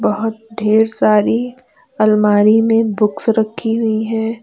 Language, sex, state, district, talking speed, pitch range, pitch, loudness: Hindi, female, Uttar Pradesh, Lalitpur, 120 wpm, 215-225 Hz, 220 Hz, -15 LUFS